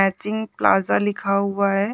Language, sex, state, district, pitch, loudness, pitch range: Hindi, female, Chhattisgarh, Korba, 200 Hz, -21 LUFS, 195-205 Hz